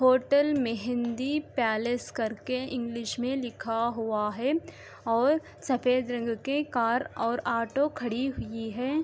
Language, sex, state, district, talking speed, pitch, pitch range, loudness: Hindi, female, Uttar Pradesh, Jalaun, 135 wpm, 245 Hz, 230-270 Hz, -29 LUFS